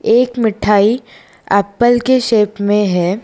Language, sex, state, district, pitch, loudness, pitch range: Hindi, female, Gujarat, Valsad, 215 Hz, -14 LUFS, 200-240 Hz